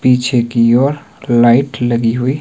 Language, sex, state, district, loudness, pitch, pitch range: Hindi, male, Himachal Pradesh, Shimla, -13 LUFS, 125 Hz, 120-135 Hz